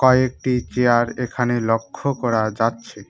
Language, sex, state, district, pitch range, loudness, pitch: Bengali, male, West Bengal, Cooch Behar, 115-125 Hz, -20 LUFS, 120 Hz